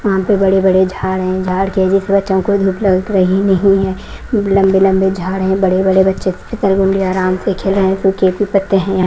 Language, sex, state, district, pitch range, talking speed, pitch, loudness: Hindi, female, Haryana, Rohtak, 190-195 Hz, 220 wpm, 190 Hz, -14 LUFS